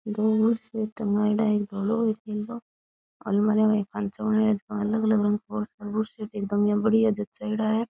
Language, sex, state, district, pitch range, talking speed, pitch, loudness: Rajasthani, female, Rajasthan, Churu, 210-220 Hz, 150 wpm, 215 Hz, -25 LUFS